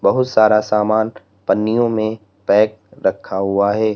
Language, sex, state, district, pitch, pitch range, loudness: Hindi, male, Uttar Pradesh, Lalitpur, 105 Hz, 100-110 Hz, -17 LUFS